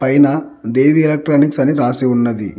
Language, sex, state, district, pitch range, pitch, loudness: Telugu, male, Telangana, Mahabubabad, 125-150 Hz, 140 Hz, -14 LUFS